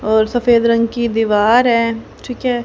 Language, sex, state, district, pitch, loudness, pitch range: Hindi, female, Haryana, Rohtak, 230 Hz, -14 LUFS, 225-245 Hz